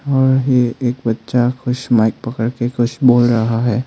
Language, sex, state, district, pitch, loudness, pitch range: Hindi, male, Arunachal Pradesh, Longding, 120 Hz, -16 LUFS, 115-130 Hz